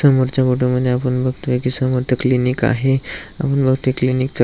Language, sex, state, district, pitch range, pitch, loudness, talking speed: Marathi, male, Maharashtra, Aurangabad, 125-130 Hz, 130 Hz, -17 LUFS, 175 wpm